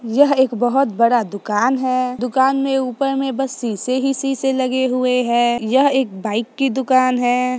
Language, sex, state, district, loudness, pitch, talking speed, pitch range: Hindi, female, Bihar, Sitamarhi, -17 LUFS, 255 Hz, 180 wpm, 245-270 Hz